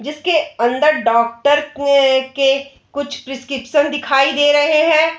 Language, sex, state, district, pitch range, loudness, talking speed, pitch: Hindi, female, Bihar, Darbhanga, 270-295 Hz, -15 LUFS, 125 wpm, 285 Hz